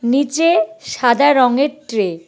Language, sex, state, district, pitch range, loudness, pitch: Bengali, female, West Bengal, Cooch Behar, 240-295 Hz, -15 LUFS, 275 Hz